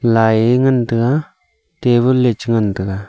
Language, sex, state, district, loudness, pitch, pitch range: Wancho, male, Arunachal Pradesh, Longding, -15 LUFS, 120 Hz, 110-125 Hz